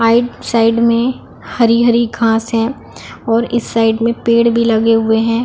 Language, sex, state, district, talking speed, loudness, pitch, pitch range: Hindi, female, Chhattisgarh, Balrampur, 175 wpm, -13 LUFS, 230 Hz, 225-235 Hz